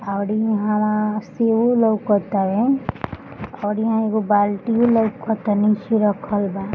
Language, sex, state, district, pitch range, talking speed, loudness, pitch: Bhojpuri, female, Bihar, Gopalganj, 205-225 Hz, 115 wpm, -19 LUFS, 215 Hz